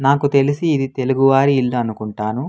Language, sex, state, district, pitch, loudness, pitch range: Telugu, male, Andhra Pradesh, Anantapur, 135 Hz, -17 LUFS, 125-140 Hz